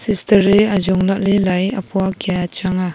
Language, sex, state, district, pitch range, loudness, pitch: Wancho, female, Arunachal Pradesh, Longding, 185-200 Hz, -16 LUFS, 195 Hz